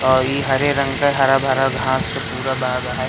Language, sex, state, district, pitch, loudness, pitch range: Hindi, male, Madhya Pradesh, Katni, 130 Hz, -17 LUFS, 130-135 Hz